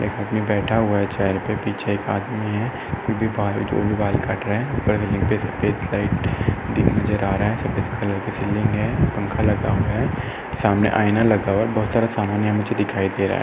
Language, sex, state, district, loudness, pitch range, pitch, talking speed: Hindi, male, Uttar Pradesh, Etah, -21 LUFS, 100-110 Hz, 105 Hz, 235 wpm